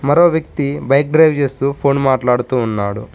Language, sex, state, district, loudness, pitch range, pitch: Telugu, male, Telangana, Mahabubabad, -15 LUFS, 125-145 Hz, 140 Hz